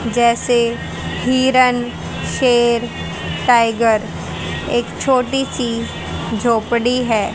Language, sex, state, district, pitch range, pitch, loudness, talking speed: Hindi, female, Haryana, Jhajjar, 230-250 Hz, 240 Hz, -17 LUFS, 75 wpm